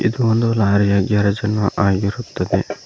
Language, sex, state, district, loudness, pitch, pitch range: Kannada, male, Karnataka, Koppal, -18 LUFS, 100 Hz, 100-110 Hz